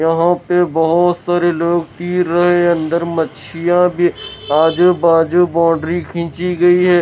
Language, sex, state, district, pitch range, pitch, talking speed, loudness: Hindi, male, Bihar, West Champaran, 165-175 Hz, 175 Hz, 145 wpm, -14 LUFS